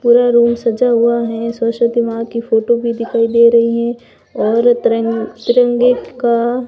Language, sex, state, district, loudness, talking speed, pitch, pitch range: Hindi, female, Rajasthan, Barmer, -14 LUFS, 160 wpm, 235 Hz, 230-240 Hz